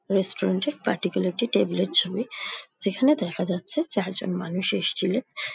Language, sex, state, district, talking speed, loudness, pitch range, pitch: Bengali, female, West Bengal, Dakshin Dinajpur, 160 wpm, -25 LUFS, 180-230 Hz, 190 Hz